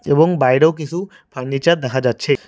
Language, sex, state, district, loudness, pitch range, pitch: Bengali, male, West Bengal, Cooch Behar, -17 LUFS, 130-170 Hz, 145 Hz